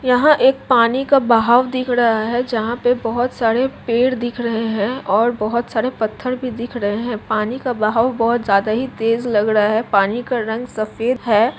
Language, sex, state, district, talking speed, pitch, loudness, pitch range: Hindi, female, Jharkhand, Jamtara, 200 wpm, 235 Hz, -17 LUFS, 220-250 Hz